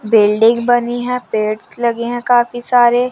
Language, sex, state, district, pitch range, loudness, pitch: Hindi, female, Chandigarh, Chandigarh, 225-245 Hz, -15 LUFS, 240 Hz